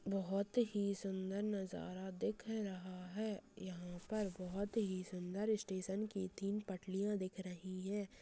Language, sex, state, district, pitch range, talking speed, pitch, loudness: Hindi, female, Chhattisgarh, Balrampur, 185-205 Hz, 140 wpm, 195 Hz, -43 LUFS